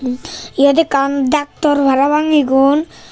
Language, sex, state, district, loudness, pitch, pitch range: Chakma, male, Tripura, Unakoti, -14 LUFS, 280 Hz, 275-300 Hz